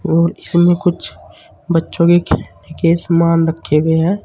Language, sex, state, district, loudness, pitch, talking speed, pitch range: Hindi, male, Uttar Pradesh, Saharanpur, -14 LUFS, 170 Hz, 155 wpm, 165-175 Hz